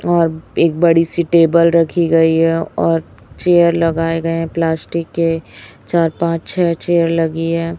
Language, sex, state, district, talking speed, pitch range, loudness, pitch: Hindi, female, Chhattisgarh, Raipur, 155 wpm, 165-170 Hz, -15 LUFS, 165 Hz